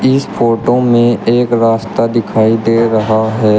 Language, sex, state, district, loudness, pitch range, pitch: Hindi, male, Uttar Pradesh, Shamli, -12 LUFS, 110-120 Hz, 115 Hz